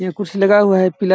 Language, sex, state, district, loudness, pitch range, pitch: Hindi, male, Chhattisgarh, Balrampur, -14 LUFS, 185-205 Hz, 195 Hz